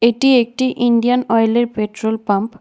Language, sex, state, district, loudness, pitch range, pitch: Bengali, female, Tripura, West Tripura, -16 LUFS, 220-245 Hz, 235 Hz